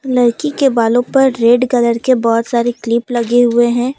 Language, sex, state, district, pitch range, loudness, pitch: Hindi, female, Jharkhand, Deoghar, 235-255 Hz, -13 LUFS, 240 Hz